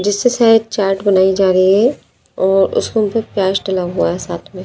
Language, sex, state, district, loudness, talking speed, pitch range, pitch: Hindi, female, Madhya Pradesh, Dhar, -14 LUFS, 205 wpm, 190-215 Hz, 195 Hz